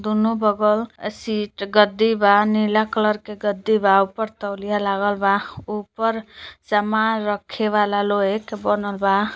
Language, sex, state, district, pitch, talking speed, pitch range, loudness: Bhojpuri, female, Uttar Pradesh, Deoria, 210 Hz, 140 wpm, 205-220 Hz, -20 LUFS